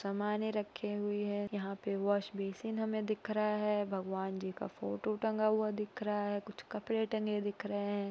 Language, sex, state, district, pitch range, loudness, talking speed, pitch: Hindi, female, Uttar Pradesh, Jalaun, 200-215 Hz, -37 LUFS, 200 wpm, 205 Hz